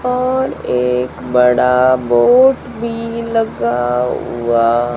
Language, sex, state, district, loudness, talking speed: Hindi, female, Rajasthan, Jaisalmer, -14 LUFS, 85 wpm